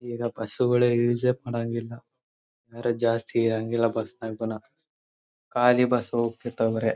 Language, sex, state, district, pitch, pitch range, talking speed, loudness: Kannada, male, Karnataka, Bellary, 115 Hz, 115-120 Hz, 105 wpm, -26 LUFS